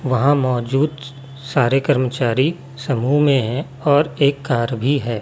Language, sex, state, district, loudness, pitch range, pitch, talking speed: Hindi, male, Chhattisgarh, Raipur, -18 LUFS, 130-145 Hz, 135 Hz, 140 wpm